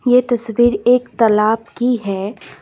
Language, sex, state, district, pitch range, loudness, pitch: Hindi, female, Assam, Kamrup Metropolitan, 220-245 Hz, -16 LUFS, 240 Hz